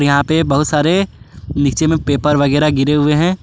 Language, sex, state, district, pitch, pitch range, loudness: Hindi, male, Jharkhand, Palamu, 150 Hz, 140-160 Hz, -14 LUFS